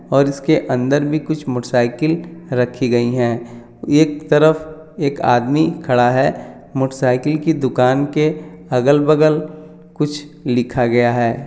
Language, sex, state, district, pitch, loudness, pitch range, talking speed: Hindi, male, Jharkhand, Jamtara, 140 Hz, -17 LUFS, 125-155 Hz, 135 wpm